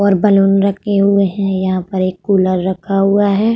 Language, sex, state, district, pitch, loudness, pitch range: Hindi, female, Uttar Pradesh, Budaun, 195 Hz, -14 LUFS, 190-200 Hz